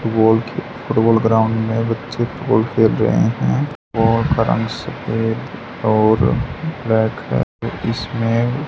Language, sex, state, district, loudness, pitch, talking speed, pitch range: Hindi, male, Haryana, Charkhi Dadri, -18 LUFS, 115 Hz, 90 wpm, 110-120 Hz